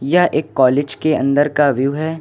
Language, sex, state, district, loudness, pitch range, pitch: Hindi, male, Uttar Pradesh, Lucknow, -16 LUFS, 140-155 Hz, 145 Hz